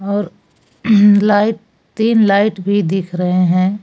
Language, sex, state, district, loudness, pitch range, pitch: Hindi, female, Jharkhand, Palamu, -14 LUFS, 185-210 Hz, 200 Hz